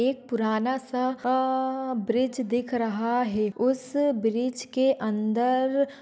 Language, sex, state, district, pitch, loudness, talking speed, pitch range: Hindi, female, Maharashtra, Pune, 255 Hz, -26 LUFS, 120 wpm, 230-260 Hz